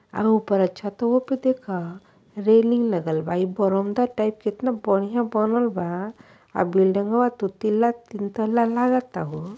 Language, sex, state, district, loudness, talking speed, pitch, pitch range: Bhojpuri, female, Uttar Pradesh, Ghazipur, -23 LUFS, 140 wpm, 215 Hz, 195-235 Hz